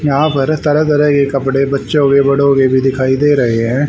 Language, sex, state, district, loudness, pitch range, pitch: Hindi, male, Haryana, Rohtak, -12 LUFS, 135-145 Hz, 140 Hz